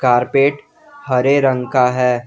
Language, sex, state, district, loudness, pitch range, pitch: Hindi, male, Jharkhand, Garhwa, -15 LUFS, 125-140 Hz, 130 Hz